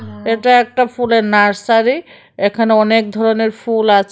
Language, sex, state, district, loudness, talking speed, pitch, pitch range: Bengali, female, Tripura, West Tripura, -14 LUFS, 130 wpm, 225 Hz, 210-240 Hz